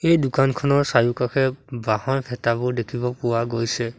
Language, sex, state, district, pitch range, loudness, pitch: Assamese, male, Assam, Sonitpur, 115-135 Hz, -22 LUFS, 125 Hz